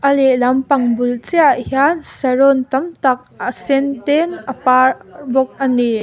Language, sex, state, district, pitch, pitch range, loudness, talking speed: Mizo, female, Mizoram, Aizawl, 265 Hz, 255-280 Hz, -15 LUFS, 170 wpm